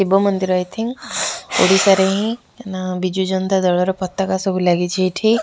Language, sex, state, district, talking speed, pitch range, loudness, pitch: Odia, female, Odisha, Khordha, 145 wpm, 185-195 Hz, -18 LUFS, 190 Hz